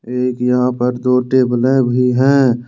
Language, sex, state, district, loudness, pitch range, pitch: Hindi, male, Jharkhand, Ranchi, -14 LUFS, 125-130 Hz, 125 Hz